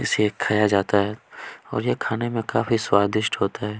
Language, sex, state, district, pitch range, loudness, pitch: Hindi, male, Chhattisgarh, Kabirdham, 105-110 Hz, -22 LUFS, 105 Hz